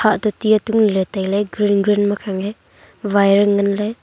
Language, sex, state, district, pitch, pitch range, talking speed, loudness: Wancho, female, Arunachal Pradesh, Longding, 205 Hz, 200-215 Hz, 210 wpm, -17 LUFS